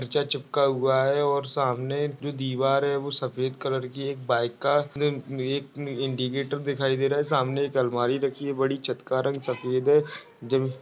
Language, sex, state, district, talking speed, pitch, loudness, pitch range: Hindi, male, Maharashtra, Pune, 210 wpm, 135 Hz, -26 LUFS, 130-140 Hz